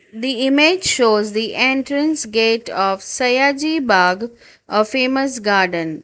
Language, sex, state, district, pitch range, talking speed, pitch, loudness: English, female, Gujarat, Valsad, 210-270 Hz, 120 wpm, 235 Hz, -16 LUFS